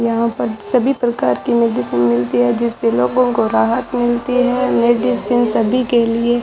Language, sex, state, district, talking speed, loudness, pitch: Hindi, male, Rajasthan, Bikaner, 175 wpm, -16 LUFS, 235 Hz